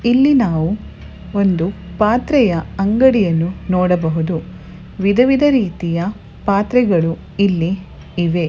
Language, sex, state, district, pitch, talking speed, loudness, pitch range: Kannada, female, Karnataka, Bellary, 190 Hz, 85 wpm, -16 LUFS, 170-230 Hz